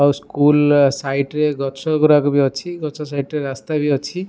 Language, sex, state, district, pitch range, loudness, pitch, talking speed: Odia, male, Odisha, Malkangiri, 140-150 Hz, -18 LUFS, 145 Hz, 155 wpm